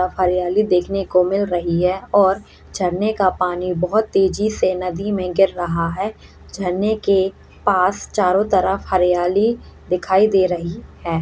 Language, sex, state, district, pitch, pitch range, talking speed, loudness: Hindi, female, Uttarakhand, Uttarkashi, 185 Hz, 180-195 Hz, 150 wpm, -18 LUFS